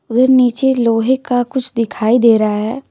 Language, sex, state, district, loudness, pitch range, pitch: Hindi, female, Jharkhand, Deoghar, -14 LUFS, 230-260 Hz, 245 Hz